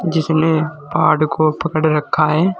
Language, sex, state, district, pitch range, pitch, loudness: Hindi, male, Uttar Pradesh, Saharanpur, 155-160 Hz, 155 Hz, -16 LUFS